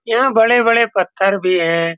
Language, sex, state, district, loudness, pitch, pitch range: Hindi, male, Bihar, Saran, -14 LUFS, 200 Hz, 185-230 Hz